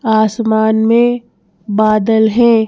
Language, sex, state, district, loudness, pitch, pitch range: Hindi, female, Madhya Pradesh, Bhopal, -12 LUFS, 220 Hz, 220-230 Hz